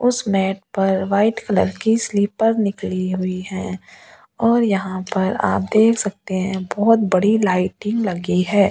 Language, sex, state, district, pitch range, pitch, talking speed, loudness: Hindi, female, Delhi, New Delhi, 190-220 Hz, 200 Hz, 150 wpm, -19 LUFS